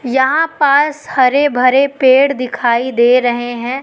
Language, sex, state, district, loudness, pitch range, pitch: Hindi, female, Madhya Pradesh, Katni, -12 LUFS, 245-280 Hz, 260 Hz